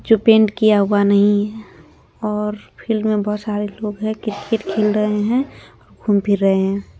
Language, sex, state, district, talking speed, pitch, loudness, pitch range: Hindi, female, Bihar, Araria, 180 wpm, 210 Hz, -18 LUFS, 205-215 Hz